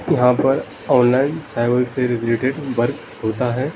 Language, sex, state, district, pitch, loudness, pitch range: Hindi, male, Arunachal Pradesh, Lower Dibang Valley, 125 Hz, -19 LUFS, 120-135 Hz